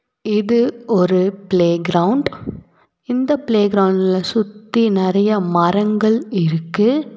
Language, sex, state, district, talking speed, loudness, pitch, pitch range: Tamil, female, Tamil Nadu, Nilgiris, 90 wpm, -17 LUFS, 210 Hz, 185-230 Hz